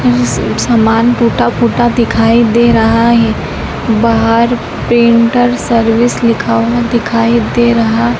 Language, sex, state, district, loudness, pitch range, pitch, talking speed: Hindi, female, Madhya Pradesh, Dhar, -10 LUFS, 225-235 Hz, 230 Hz, 125 wpm